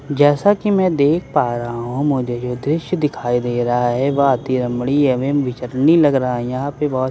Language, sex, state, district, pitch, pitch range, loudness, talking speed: Hindi, male, Bihar, Katihar, 135 Hz, 125-145 Hz, -17 LUFS, 235 wpm